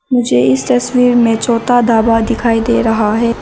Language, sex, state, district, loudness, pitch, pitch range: Hindi, female, Arunachal Pradesh, Lower Dibang Valley, -12 LUFS, 230 Hz, 225-245 Hz